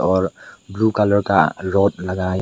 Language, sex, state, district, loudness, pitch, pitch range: Hindi, male, Meghalaya, West Garo Hills, -18 LUFS, 95 Hz, 90-100 Hz